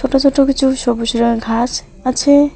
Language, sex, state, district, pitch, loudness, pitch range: Bengali, female, West Bengal, Alipurduar, 260 Hz, -15 LUFS, 235-275 Hz